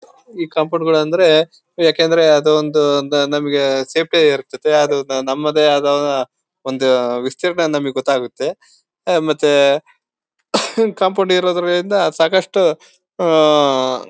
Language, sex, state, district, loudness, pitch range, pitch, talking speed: Kannada, male, Karnataka, Bellary, -15 LUFS, 140-175 Hz, 155 Hz, 90 wpm